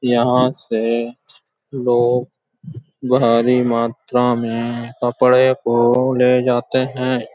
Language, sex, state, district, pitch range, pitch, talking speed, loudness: Hindi, male, Uttar Pradesh, Hamirpur, 120-130 Hz, 125 Hz, 90 wpm, -17 LUFS